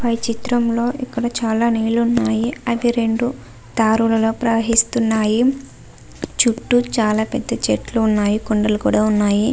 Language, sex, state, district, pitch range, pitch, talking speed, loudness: Telugu, female, Andhra Pradesh, Visakhapatnam, 220-240 Hz, 230 Hz, 120 wpm, -18 LUFS